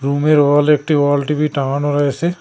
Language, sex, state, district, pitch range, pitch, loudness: Bengali, male, West Bengal, Cooch Behar, 145-150 Hz, 145 Hz, -15 LUFS